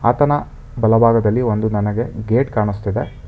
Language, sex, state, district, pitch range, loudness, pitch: Kannada, male, Karnataka, Bangalore, 105-120 Hz, -17 LUFS, 115 Hz